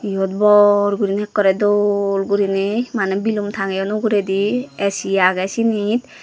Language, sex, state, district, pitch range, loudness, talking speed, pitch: Chakma, female, Tripura, West Tripura, 195-210 Hz, -17 LUFS, 125 wpm, 205 Hz